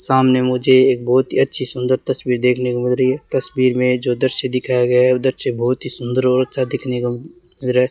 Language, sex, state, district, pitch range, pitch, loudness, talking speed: Hindi, male, Rajasthan, Bikaner, 125-130 Hz, 125 Hz, -17 LUFS, 245 wpm